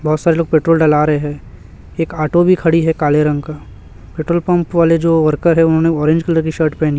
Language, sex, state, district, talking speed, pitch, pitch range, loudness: Hindi, male, Chhattisgarh, Raipur, 230 wpm, 160 Hz, 150-165 Hz, -14 LUFS